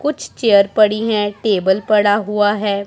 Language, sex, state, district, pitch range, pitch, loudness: Hindi, male, Punjab, Pathankot, 205-215 Hz, 210 Hz, -15 LUFS